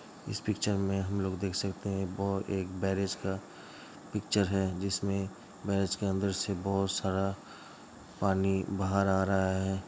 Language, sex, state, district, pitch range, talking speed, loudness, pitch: Hindi, male, Uttar Pradesh, Hamirpur, 95-100 Hz, 150 wpm, -32 LUFS, 95 Hz